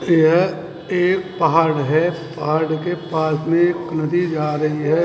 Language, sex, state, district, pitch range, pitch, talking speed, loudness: Hindi, male, Uttar Pradesh, Saharanpur, 155-175 Hz, 165 Hz, 155 wpm, -19 LUFS